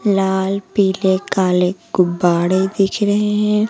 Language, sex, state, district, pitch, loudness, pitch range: Hindi, female, Uttar Pradesh, Lucknow, 190 Hz, -17 LUFS, 185-205 Hz